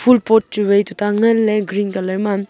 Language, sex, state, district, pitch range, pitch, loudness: Wancho, female, Arunachal Pradesh, Longding, 200-225 Hz, 205 Hz, -16 LUFS